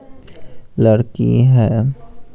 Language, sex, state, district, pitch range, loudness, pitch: Hindi, male, Bihar, Patna, 115-125 Hz, -14 LUFS, 120 Hz